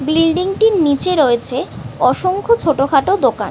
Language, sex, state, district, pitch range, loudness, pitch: Bengali, female, West Bengal, North 24 Parganas, 285-385 Hz, -15 LUFS, 335 Hz